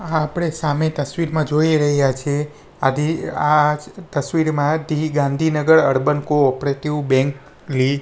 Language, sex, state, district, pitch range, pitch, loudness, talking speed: Gujarati, male, Gujarat, Gandhinagar, 140-155 Hz, 150 Hz, -19 LUFS, 110 wpm